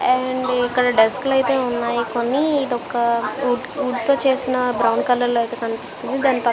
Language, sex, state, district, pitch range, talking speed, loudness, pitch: Telugu, female, Andhra Pradesh, Visakhapatnam, 235-265 Hz, 145 wpm, -19 LUFS, 250 Hz